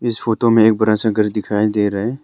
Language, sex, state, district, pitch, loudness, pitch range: Hindi, male, Arunachal Pradesh, Longding, 110 Hz, -16 LUFS, 105-115 Hz